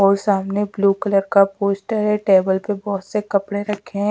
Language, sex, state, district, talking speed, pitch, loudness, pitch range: Hindi, female, Chhattisgarh, Raipur, 205 wpm, 200 Hz, -19 LUFS, 195-205 Hz